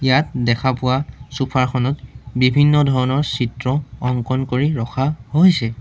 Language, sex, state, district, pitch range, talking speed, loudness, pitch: Assamese, male, Assam, Sonitpur, 125-140 Hz, 125 wpm, -18 LUFS, 130 Hz